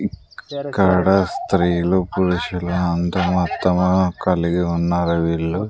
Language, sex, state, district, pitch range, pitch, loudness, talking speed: Telugu, male, Andhra Pradesh, Sri Satya Sai, 85-95 Hz, 90 Hz, -19 LUFS, 95 wpm